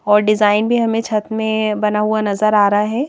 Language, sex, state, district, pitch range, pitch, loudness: Hindi, female, Madhya Pradesh, Bhopal, 210-220 Hz, 215 Hz, -16 LUFS